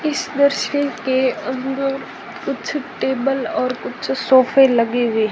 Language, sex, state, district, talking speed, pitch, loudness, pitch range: Hindi, male, Rajasthan, Jaisalmer, 125 wpm, 265 Hz, -19 LUFS, 255-275 Hz